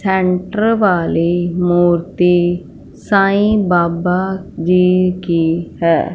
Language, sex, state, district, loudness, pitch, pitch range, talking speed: Hindi, female, Punjab, Fazilka, -15 LUFS, 180 Hz, 175-190 Hz, 80 wpm